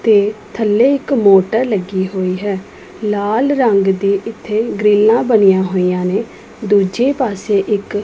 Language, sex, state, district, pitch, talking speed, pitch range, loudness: Punjabi, female, Punjab, Pathankot, 205 Hz, 140 wpm, 195-225 Hz, -14 LUFS